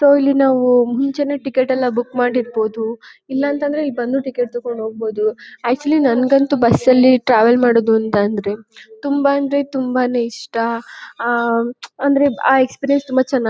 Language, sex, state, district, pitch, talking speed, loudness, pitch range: Kannada, female, Karnataka, Chamarajanagar, 250 Hz, 140 wpm, -16 LUFS, 235-275 Hz